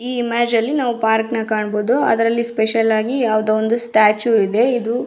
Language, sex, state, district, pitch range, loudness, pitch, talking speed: Kannada, female, Karnataka, Raichur, 220-240 Hz, -17 LUFS, 230 Hz, 165 wpm